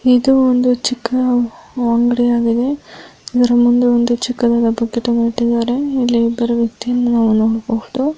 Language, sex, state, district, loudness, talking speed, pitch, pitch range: Kannada, female, Karnataka, Dharwad, -15 LUFS, 125 wpm, 240 Hz, 235-250 Hz